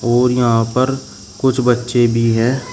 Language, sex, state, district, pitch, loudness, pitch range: Hindi, male, Uttar Pradesh, Shamli, 125 Hz, -15 LUFS, 120-130 Hz